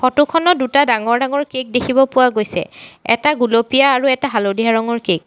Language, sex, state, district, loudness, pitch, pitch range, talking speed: Assamese, female, Assam, Sonitpur, -15 LUFS, 255 Hz, 230-275 Hz, 195 wpm